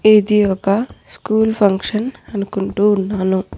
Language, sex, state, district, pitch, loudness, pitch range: Telugu, female, Andhra Pradesh, Annamaya, 205 Hz, -17 LUFS, 195-215 Hz